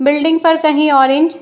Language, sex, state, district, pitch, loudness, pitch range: Hindi, female, Uttar Pradesh, Jyotiba Phule Nagar, 305 Hz, -12 LUFS, 285-320 Hz